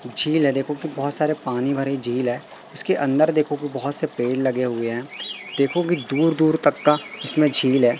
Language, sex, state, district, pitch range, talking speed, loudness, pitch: Hindi, male, Madhya Pradesh, Katni, 130-155 Hz, 220 wpm, -21 LUFS, 140 Hz